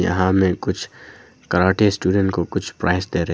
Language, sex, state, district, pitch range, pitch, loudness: Hindi, male, Arunachal Pradesh, Longding, 90-95 Hz, 95 Hz, -19 LUFS